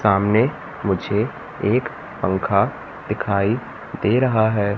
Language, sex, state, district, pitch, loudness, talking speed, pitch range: Hindi, male, Madhya Pradesh, Katni, 105 Hz, -21 LUFS, 100 wpm, 100-115 Hz